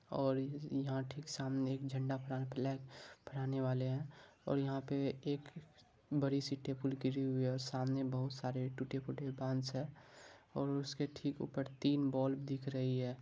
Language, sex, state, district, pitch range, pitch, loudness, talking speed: Maithili, male, Bihar, Supaul, 130-140 Hz, 135 Hz, -40 LUFS, 170 wpm